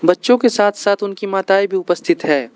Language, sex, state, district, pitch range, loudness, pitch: Hindi, male, Arunachal Pradesh, Lower Dibang Valley, 175-205 Hz, -16 LUFS, 195 Hz